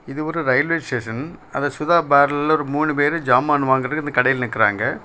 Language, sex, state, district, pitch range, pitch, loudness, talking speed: Tamil, male, Tamil Nadu, Kanyakumari, 130-155 Hz, 145 Hz, -19 LUFS, 180 wpm